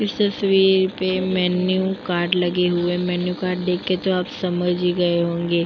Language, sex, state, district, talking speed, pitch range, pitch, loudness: Hindi, female, Uttar Pradesh, Jyotiba Phule Nagar, 160 wpm, 175-185 Hz, 180 Hz, -20 LUFS